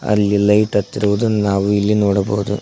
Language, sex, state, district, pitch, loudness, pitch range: Kannada, male, Karnataka, Koppal, 100 Hz, -16 LUFS, 100-105 Hz